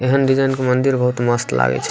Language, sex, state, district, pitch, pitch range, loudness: Maithili, male, Bihar, Supaul, 125 Hz, 120-135 Hz, -17 LUFS